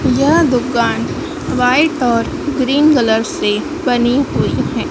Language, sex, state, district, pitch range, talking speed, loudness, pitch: Hindi, female, Madhya Pradesh, Dhar, 240-295 Hz, 120 wpm, -14 LUFS, 260 Hz